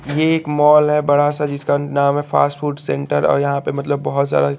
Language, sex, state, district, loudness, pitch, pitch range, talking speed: Hindi, male, Chandigarh, Chandigarh, -17 LUFS, 145 Hz, 140-150 Hz, 235 wpm